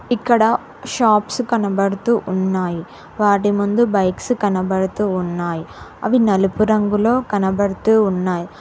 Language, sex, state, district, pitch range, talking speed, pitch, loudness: Telugu, female, Telangana, Hyderabad, 190-220 Hz, 95 wpm, 205 Hz, -18 LUFS